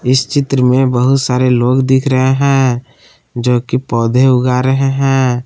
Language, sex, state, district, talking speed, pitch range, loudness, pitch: Hindi, male, Jharkhand, Palamu, 165 wpm, 125-135 Hz, -12 LUFS, 130 Hz